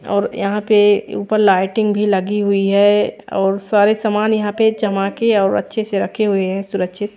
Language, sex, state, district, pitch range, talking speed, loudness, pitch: Hindi, female, Odisha, Khordha, 195-215 Hz, 185 wpm, -16 LUFS, 205 Hz